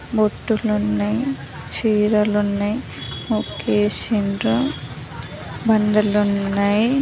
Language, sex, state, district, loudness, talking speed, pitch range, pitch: Telugu, female, Telangana, Nalgonda, -20 LUFS, 50 wpm, 140-215 Hz, 205 Hz